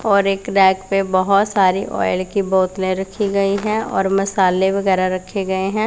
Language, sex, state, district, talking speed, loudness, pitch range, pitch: Hindi, female, Punjab, Pathankot, 185 wpm, -17 LUFS, 190-200 Hz, 195 Hz